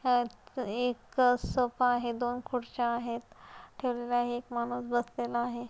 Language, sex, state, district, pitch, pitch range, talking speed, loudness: Marathi, female, Maharashtra, Pune, 245 Hz, 240-245 Hz, 125 wpm, -32 LUFS